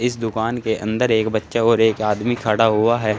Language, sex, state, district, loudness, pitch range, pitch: Hindi, male, Uttar Pradesh, Saharanpur, -19 LUFS, 110-115 Hz, 110 Hz